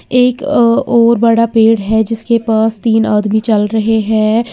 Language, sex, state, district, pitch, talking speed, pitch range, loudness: Hindi, female, Uttar Pradesh, Lalitpur, 225 Hz, 170 wpm, 220-235 Hz, -12 LUFS